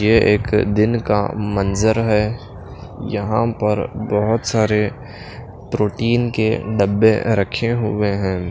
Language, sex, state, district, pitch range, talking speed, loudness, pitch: Hindi, male, Punjab, Pathankot, 100-115 Hz, 115 wpm, -18 LUFS, 105 Hz